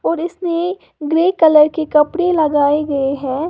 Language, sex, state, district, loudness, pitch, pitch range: Hindi, female, Uttar Pradesh, Lalitpur, -15 LUFS, 315 Hz, 295-340 Hz